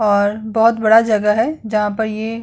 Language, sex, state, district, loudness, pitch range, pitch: Hindi, female, Uttar Pradesh, Hamirpur, -16 LUFS, 210-225 Hz, 220 Hz